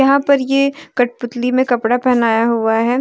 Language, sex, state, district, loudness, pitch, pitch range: Hindi, female, Jharkhand, Deoghar, -15 LUFS, 245 Hz, 240-270 Hz